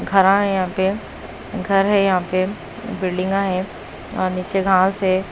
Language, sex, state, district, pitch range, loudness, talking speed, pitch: Hindi, female, Punjab, Kapurthala, 185-195 Hz, -19 LUFS, 160 wpm, 190 Hz